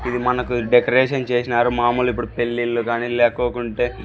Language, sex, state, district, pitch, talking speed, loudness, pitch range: Telugu, male, Andhra Pradesh, Sri Satya Sai, 120 Hz, 135 wpm, -19 LUFS, 120-125 Hz